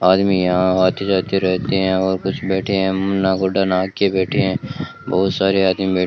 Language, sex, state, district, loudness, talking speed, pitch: Hindi, male, Rajasthan, Bikaner, -18 LUFS, 200 wpm, 95 Hz